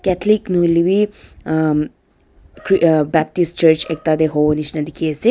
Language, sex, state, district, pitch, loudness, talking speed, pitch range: Nagamese, female, Nagaland, Dimapur, 160 Hz, -16 LUFS, 160 wpm, 155-185 Hz